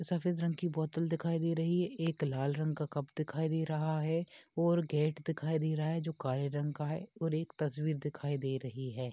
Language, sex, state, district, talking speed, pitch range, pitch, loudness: Hindi, male, Uttar Pradesh, Hamirpur, 230 wpm, 150-165 Hz, 155 Hz, -35 LUFS